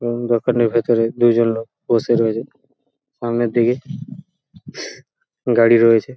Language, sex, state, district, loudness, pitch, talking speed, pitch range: Bengali, male, West Bengal, Paschim Medinipur, -17 LUFS, 120 Hz, 105 wpm, 115-130 Hz